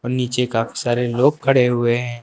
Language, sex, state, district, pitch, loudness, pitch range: Hindi, male, Uttar Pradesh, Lucknow, 120 Hz, -18 LUFS, 120-125 Hz